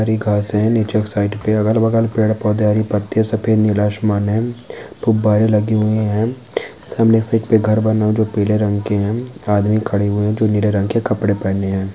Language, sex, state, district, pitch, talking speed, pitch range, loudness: Hindi, male, Maharashtra, Nagpur, 110 Hz, 215 wpm, 105-110 Hz, -16 LUFS